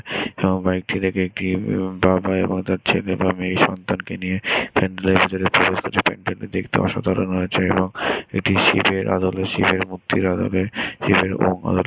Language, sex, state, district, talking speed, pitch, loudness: Bengali, male, West Bengal, Dakshin Dinajpur, 125 wpm, 95 Hz, -20 LUFS